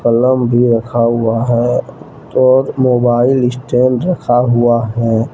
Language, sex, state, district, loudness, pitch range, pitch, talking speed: Hindi, male, Jharkhand, Deoghar, -13 LUFS, 120-130 Hz, 120 Hz, 125 wpm